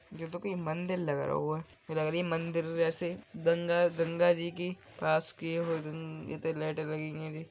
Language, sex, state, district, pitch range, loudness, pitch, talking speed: Bundeli, male, Uttar Pradesh, Budaun, 155-170 Hz, -33 LUFS, 165 Hz, 185 wpm